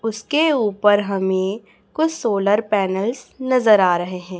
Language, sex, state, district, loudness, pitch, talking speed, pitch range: Hindi, female, Chhattisgarh, Raipur, -19 LUFS, 210 Hz, 135 wpm, 195-240 Hz